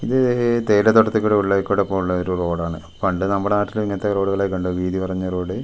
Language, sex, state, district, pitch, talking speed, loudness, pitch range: Malayalam, male, Kerala, Wayanad, 100 Hz, 190 wpm, -20 LUFS, 90-105 Hz